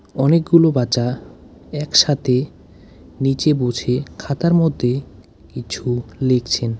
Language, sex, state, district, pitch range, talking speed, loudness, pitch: Bengali, male, West Bengal, Alipurduar, 120-150 Hz, 80 wpm, -18 LUFS, 130 Hz